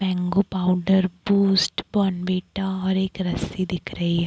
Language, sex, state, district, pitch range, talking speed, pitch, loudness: Hindi, female, Chhattisgarh, Bilaspur, 180-190 Hz, 140 wpm, 185 Hz, -23 LUFS